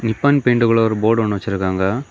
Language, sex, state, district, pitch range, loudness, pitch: Tamil, male, Tamil Nadu, Kanyakumari, 100-120 Hz, -17 LUFS, 110 Hz